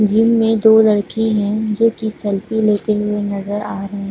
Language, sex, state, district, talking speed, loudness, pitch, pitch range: Hindi, female, Chhattisgarh, Bilaspur, 205 wpm, -16 LUFS, 210 Hz, 205-220 Hz